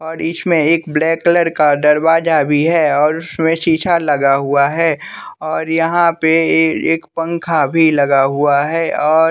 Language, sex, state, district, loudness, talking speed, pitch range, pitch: Hindi, male, Bihar, West Champaran, -14 LUFS, 170 wpm, 150-165 Hz, 160 Hz